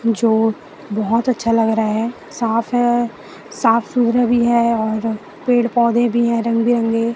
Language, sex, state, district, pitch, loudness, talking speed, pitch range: Hindi, female, Chhattisgarh, Raipur, 230 Hz, -17 LUFS, 140 wpm, 225-240 Hz